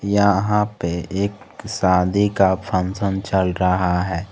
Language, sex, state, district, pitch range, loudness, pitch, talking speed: Hindi, male, Jharkhand, Garhwa, 90-100 Hz, -20 LUFS, 95 Hz, 125 wpm